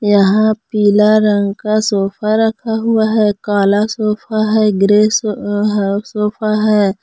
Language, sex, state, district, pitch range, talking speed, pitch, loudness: Hindi, female, Jharkhand, Palamu, 205-215 Hz, 120 wpm, 210 Hz, -14 LUFS